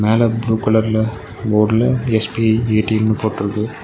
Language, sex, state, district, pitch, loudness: Tamil, male, Tamil Nadu, Nilgiris, 110 Hz, -17 LUFS